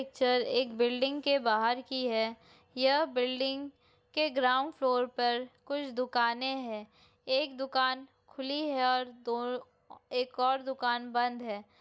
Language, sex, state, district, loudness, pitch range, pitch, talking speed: Hindi, female, Bihar, Lakhisarai, -31 LUFS, 240-270 Hz, 255 Hz, 135 wpm